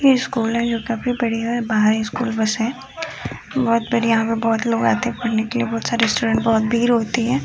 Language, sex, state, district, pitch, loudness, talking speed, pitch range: Hindi, female, Uttar Pradesh, Jyotiba Phule Nagar, 230 Hz, -20 LUFS, 240 wpm, 225-240 Hz